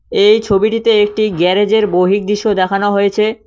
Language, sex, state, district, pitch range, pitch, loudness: Bengali, male, West Bengal, Cooch Behar, 200-215 Hz, 205 Hz, -13 LUFS